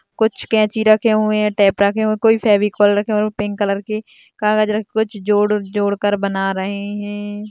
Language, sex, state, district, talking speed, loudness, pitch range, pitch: Hindi, female, Rajasthan, Churu, 210 wpm, -17 LUFS, 205-215 Hz, 210 Hz